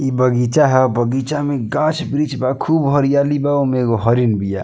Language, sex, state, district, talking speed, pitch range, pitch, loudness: Bhojpuri, male, Bihar, East Champaran, 180 wpm, 125-145 Hz, 135 Hz, -16 LUFS